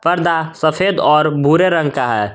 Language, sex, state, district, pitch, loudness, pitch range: Hindi, male, Jharkhand, Garhwa, 160 Hz, -14 LUFS, 150-170 Hz